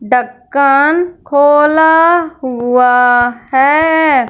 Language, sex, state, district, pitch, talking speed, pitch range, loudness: Hindi, female, Punjab, Fazilka, 275 Hz, 55 wpm, 245-315 Hz, -10 LUFS